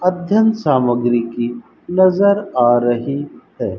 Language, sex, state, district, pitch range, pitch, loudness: Hindi, male, Rajasthan, Bikaner, 120-185 Hz, 145 Hz, -16 LUFS